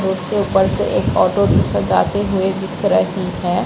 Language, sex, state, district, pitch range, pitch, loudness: Hindi, female, Bihar, Samastipur, 185-200 Hz, 190 Hz, -17 LUFS